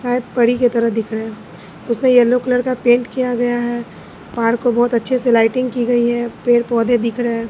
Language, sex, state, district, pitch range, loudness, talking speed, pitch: Hindi, female, Bihar, Katihar, 230-245 Hz, -16 LUFS, 225 wpm, 240 Hz